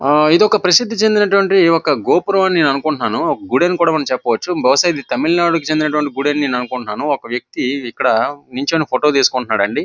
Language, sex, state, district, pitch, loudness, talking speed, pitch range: Telugu, male, Andhra Pradesh, Visakhapatnam, 150 Hz, -15 LUFS, 120 wpm, 130-170 Hz